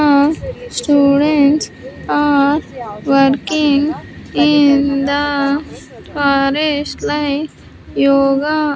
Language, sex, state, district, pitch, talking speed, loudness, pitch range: English, female, Andhra Pradesh, Sri Satya Sai, 285 Hz, 60 wpm, -14 LUFS, 280-295 Hz